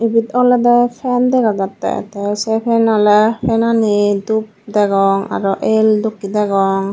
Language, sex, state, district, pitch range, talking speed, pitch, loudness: Chakma, female, Tripura, Dhalai, 205-230 Hz, 120 wpm, 215 Hz, -15 LUFS